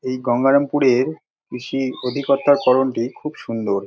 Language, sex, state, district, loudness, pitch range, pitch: Bengali, male, West Bengal, Dakshin Dinajpur, -19 LUFS, 120-140 Hz, 130 Hz